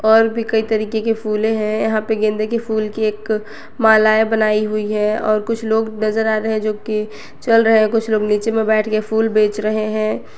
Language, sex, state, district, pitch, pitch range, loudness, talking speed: Hindi, female, Jharkhand, Garhwa, 215 Hz, 215-220 Hz, -17 LUFS, 230 wpm